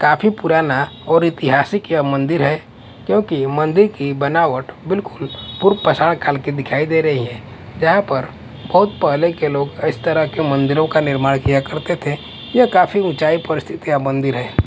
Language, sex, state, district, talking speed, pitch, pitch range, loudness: Hindi, male, Punjab, Kapurthala, 170 wpm, 155 Hz, 140-165 Hz, -17 LUFS